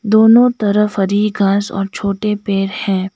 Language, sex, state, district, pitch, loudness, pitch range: Hindi, female, Sikkim, Gangtok, 205 Hz, -14 LUFS, 195-215 Hz